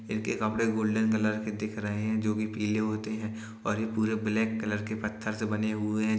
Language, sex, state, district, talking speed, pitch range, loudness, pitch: Hindi, male, Uttar Pradesh, Jalaun, 230 wpm, 105-110 Hz, -30 LUFS, 110 Hz